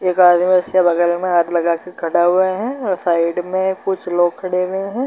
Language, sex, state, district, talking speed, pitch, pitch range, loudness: Hindi, male, Bihar, Darbhanga, 225 wpm, 180 Hz, 175-190 Hz, -17 LUFS